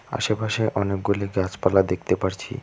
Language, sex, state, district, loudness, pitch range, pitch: Bengali, male, West Bengal, Alipurduar, -23 LUFS, 95-110 Hz, 100 Hz